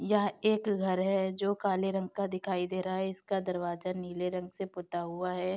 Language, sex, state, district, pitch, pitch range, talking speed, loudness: Hindi, female, Uttar Pradesh, Etah, 185 Hz, 180-195 Hz, 215 wpm, -33 LUFS